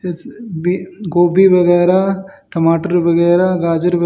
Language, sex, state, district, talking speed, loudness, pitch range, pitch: Hindi, male, Haryana, Jhajjar, 120 wpm, -14 LUFS, 170-185 Hz, 175 Hz